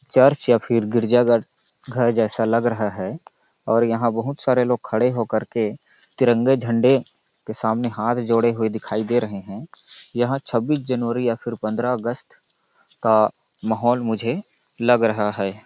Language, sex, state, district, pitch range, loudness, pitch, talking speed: Hindi, male, Chhattisgarh, Balrampur, 110-125 Hz, -21 LUFS, 120 Hz, 160 wpm